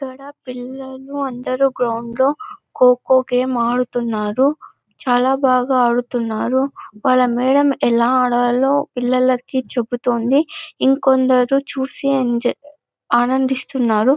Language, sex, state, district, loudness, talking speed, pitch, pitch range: Telugu, female, Andhra Pradesh, Anantapur, -17 LUFS, 95 wpm, 255 Hz, 245-270 Hz